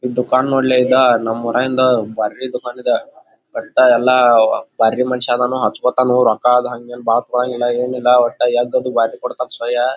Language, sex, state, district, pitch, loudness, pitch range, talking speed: Kannada, male, Karnataka, Gulbarga, 125 Hz, -15 LUFS, 120-125 Hz, 120 wpm